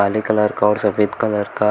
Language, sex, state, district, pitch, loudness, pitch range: Hindi, male, Uttar Pradesh, Shamli, 105 Hz, -18 LUFS, 105-110 Hz